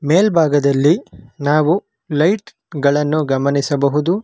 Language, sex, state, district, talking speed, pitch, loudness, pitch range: Kannada, male, Karnataka, Bangalore, 70 wpm, 150 Hz, -16 LUFS, 140-170 Hz